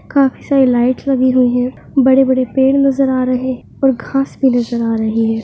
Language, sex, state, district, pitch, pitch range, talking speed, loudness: Hindi, female, Uttarakhand, Tehri Garhwal, 260 Hz, 245-270 Hz, 220 wpm, -14 LUFS